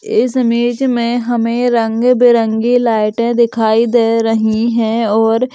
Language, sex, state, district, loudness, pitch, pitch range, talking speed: Hindi, female, West Bengal, Dakshin Dinajpur, -13 LUFS, 235 Hz, 225-245 Hz, 130 wpm